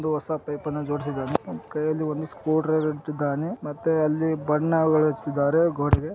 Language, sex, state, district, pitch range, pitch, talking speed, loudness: Kannada, male, Karnataka, Gulbarga, 145-155 Hz, 150 Hz, 135 wpm, -25 LUFS